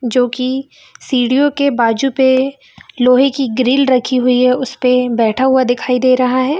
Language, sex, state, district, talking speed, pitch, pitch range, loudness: Hindi, female, Chhattisgarh, Bilaspur, 175 wpm, 255 Hz, 250-265 Hz, -14 LUFS